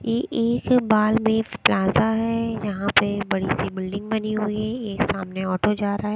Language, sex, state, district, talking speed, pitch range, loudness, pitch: Hindi, female, Haryana, Rohtak, 185 wpm, 200-225 Hz, -22 LUFS, 215 Hz